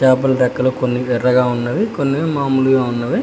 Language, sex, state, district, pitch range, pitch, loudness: Telugu, male, Telangana, Hyderabad, 125-135 Hz, 130 Hz, -16 LUFS